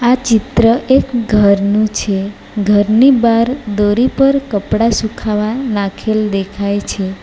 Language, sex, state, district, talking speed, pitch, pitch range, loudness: Gujarati, female, Gujarat, Valsad, 115 wpm, 215 Hz, 205-235 Hz, -13 LUFS